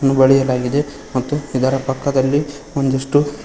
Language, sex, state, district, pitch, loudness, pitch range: Kannada, male, Karnataka, Koppal, 135 Hz, -17 LUFS, 130-145 Hz